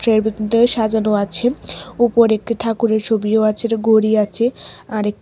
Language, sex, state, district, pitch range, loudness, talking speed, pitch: Bengali, female, Tripura, West Tripura, 215-230 Hz, -17 LUFS, 150 wpm, 220 Hz